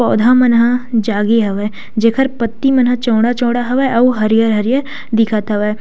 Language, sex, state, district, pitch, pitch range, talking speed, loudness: Chhattisgarhi, female, Chhattisgarh, Sukma, 230 Hz, 220-250 Hz, 165 wpm, -14 LUFS